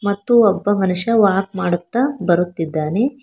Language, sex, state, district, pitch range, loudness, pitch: Kannada, female, Karnataka, Bangalore, 175-230 Hz, -17 LUFS, 195 Hz